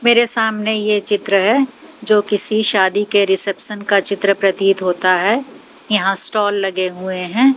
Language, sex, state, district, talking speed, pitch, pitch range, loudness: Hindi, female, Haryana, Jhajjar, 160 wpm, 205 Hz, 195-220 Hz, -15 LUFS